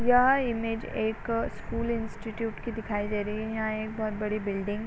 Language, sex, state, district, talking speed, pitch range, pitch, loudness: Hindi, female, Uttar Pradesh, Varanasi, 195 wpm, 215-230 Hz, 220 Hz, -30 LUFS